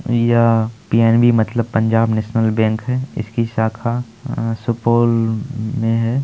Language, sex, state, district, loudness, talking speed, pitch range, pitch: Maithili, male, Bihar, Supaul, -17 LUFS, 125 wpm, 110-120 Hz, 115 Hz